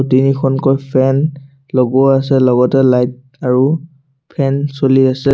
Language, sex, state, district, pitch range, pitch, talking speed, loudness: Assamese, male, Assam, Sonitpur, 130-140 Hz, 135 Hz, 110 wpm, -13 LUFS